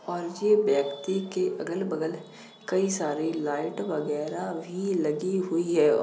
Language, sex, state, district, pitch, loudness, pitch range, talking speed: Hindi, male, Uttar Pradesh, Jalaun, 170 Hz, -28 LUFS, 150-190 Hz, 150 wpm